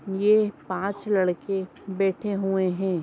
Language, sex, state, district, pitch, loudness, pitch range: Hindi, female, Bihar, Vaishali, 195 Hz, -25 LUFS, 185-200 Hz